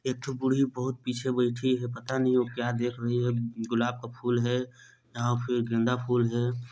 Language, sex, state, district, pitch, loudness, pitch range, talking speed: Hindi, male, Chhattisgarh, Sarguja, 120 Hz, -29 LUFS, 120-125 Hz, 205 wpm